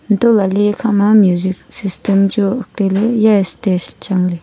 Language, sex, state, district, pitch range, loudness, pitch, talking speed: Wancho, female, Arunachal Pradesh, Longding, 190-215 Hz, -14 LUFS, 200 Hz, 165 wpm